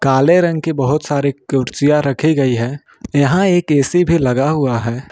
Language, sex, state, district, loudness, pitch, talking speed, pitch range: Hindi, male, Jharkhand, Ranchi, -15 LUFS, 140 Hz, 190 wpm, 135-160 Hz